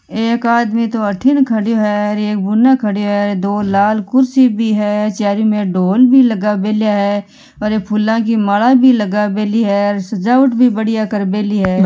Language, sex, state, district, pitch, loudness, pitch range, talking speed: Marwari, female, Rajasthan, Nagaur, 210 Hz, -13 LUFS, 205-230 Hz, 180 wpm